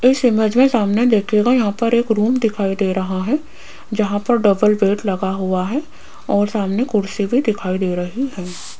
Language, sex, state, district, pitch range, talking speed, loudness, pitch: Hindi, female, Rajasthan, Jaipur, 195-235 Hz, 190 wpm, -18 LUFS, 210 Hz